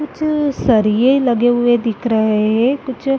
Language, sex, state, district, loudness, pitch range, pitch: Hindi, female, Chhattisgarh, Rajnandgaon, -15 LUFS, 225-270 Hz, 240 Hz